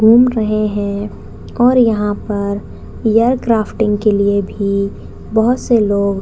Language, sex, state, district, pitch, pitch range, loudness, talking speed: Hindi, female, Chhattisgarh, Raigarh, 215 Hz, 200-230 Hz, -15 LUFS, 145 wpm